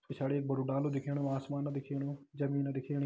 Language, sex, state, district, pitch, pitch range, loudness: Hindi, male, Uttarakhand, Tehri Garhwal, 140 Hz, 135-140 Hz, -36 LUFS